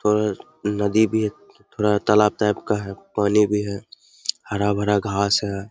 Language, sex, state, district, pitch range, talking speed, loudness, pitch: Hindi, male, Bihar, Saharsa, 100-105 Hz, 155 wpm, -21 LUFS, 105 Hz